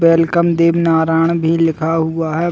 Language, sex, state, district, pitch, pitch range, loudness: Hindi, male, Uttar Pradesh, Jalaun, 165 Hz, 160-170 Hz, -14 LUFS